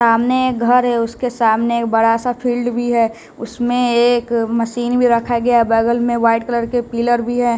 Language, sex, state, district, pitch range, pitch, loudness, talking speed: Hindi, male, Bihar, West Champaran, 230-245 Hz, 235 Hz, -16 LUFS, 200 wpm